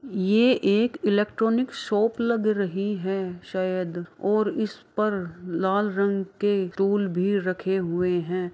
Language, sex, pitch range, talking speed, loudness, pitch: Maithili, female, 185-215 Hz, 135 wpm, -25 LUFS, 200 Hz